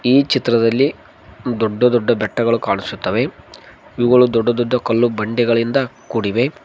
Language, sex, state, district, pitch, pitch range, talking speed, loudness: Kannada, male, Karnataka, Koppal, 120 Hz, 115-125 Hz, 110 wpm, -17 LUFS